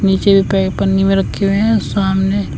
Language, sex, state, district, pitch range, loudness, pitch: Hindi, female, Uttar Pradesh, Shamli, 125-200 Hz, -14 LUFS, 195 Hz